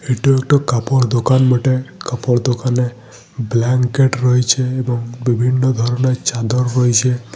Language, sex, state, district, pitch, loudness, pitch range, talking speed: Bengali, male, West Bengal, Purulia, 125 Hz, -16 LUFS, 120-130 Hz, 115 wpm